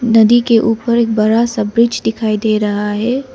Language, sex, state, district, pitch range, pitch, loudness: Hindi, female, Arunachal Pradesh, Lower Dibang Valley, 215-235 Hz, 225 Hz, -13 LUFS